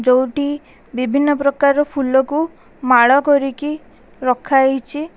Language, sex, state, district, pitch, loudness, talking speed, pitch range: Odia, female, Odisha, Khordha, 280 Hz, -16 LUFS, 95 wpm, 260-290 Hz